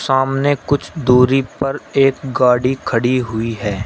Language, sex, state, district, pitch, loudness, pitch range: Hindi, male, Uttar Pradesh, Shamli, 130 Hz, -16 LUFS, 125-135 Hz